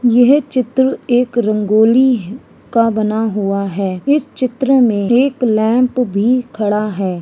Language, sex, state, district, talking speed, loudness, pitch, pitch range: Hindi, female, Uttarakhand, Uttarkashi, 140 wpm, -14 LUFS, 235 Hz, 210-255 Hz